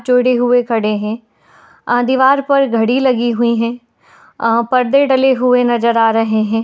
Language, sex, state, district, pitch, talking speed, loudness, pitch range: Hindi, female, Uttar Pradesh, Etah, 245 Hz, 180 wpm, -14 LUFS, 230-255 Hz